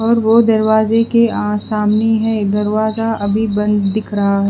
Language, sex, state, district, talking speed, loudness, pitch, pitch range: Hindi, female, Bihar, West Champaran, 145 wpm, -15 LUFS, 215 Hz, 210-225 Hz